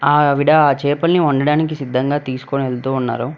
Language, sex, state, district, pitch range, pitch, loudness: Telugu, male, Telangana, Hyderabad, 130-150 Hz, 140 Hz, -16 LUFS